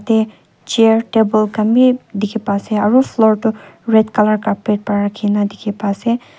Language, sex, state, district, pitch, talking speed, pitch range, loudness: Nagamese, female, Nagaland, Kohima, 215 Hz, 180 wpm, 205-225 Hz, -15 LUFS